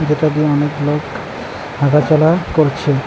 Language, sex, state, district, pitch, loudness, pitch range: Bengali, male, West Bengal, Cooch Behar, 150 Hz, -15 LUFS, 145-155 Hz